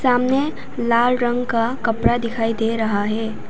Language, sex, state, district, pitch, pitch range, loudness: Hindi, female, Arunachal Pradesh, Papum Pare, 235 Hz, 225-245 Hz, -20 LUFS